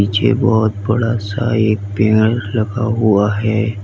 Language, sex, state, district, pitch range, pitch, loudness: Hindi, male, Uttar Pradesh, Lalitpur, 105-115 Hz, 110 Hz, -15 LUFS